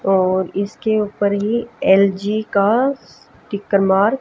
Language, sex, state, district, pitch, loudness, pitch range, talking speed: Hindi, female, Haryana, Jhajjar, 200 Hz, -17 LUFS, 195-215 Hz, 100 wpm